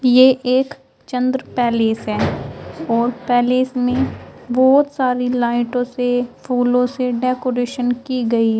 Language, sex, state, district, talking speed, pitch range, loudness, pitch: Hindi, female, Uttar Pradesh, Shamli, 125 wpm, 245-255 Hz, -18 LUFS, 250 Hz